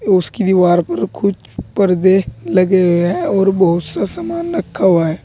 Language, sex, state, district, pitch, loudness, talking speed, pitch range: Hindi, male, Uttar Pradesh, Saharanpur, 185 Hz, -15 LUFS, 170 wpm, 175-195 Hz